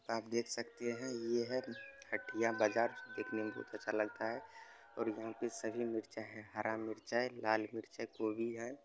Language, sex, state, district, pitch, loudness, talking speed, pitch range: Hindi, male, Bihar, Supaul, 115 Hz, -40 LUFS, 190 wpm, 110-120 Hz